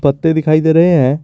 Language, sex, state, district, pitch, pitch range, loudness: Hindi, male, Jharkhand, Garhwa, 160 Hz, 140-160 Hz, -12 LUFS